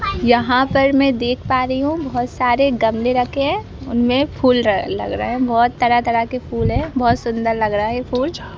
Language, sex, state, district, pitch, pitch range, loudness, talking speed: Hindi, female, Madhya Pradesh, Bhopal, 250 Hz, 235-260 Hz, -17 LUFS, 210 wpm